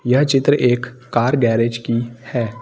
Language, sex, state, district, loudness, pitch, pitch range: Hindi, male, Uttar Pradesh, Lucknow, -18 LUFS, 120 Hz, 115-125 Hz